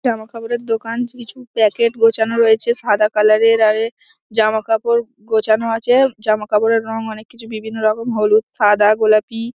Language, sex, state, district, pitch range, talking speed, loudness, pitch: Bengali, female, West Bengal, Dakshin Dinajpur, 215-235 Hz, 145 wpm, -16 LUFS, 225 Hz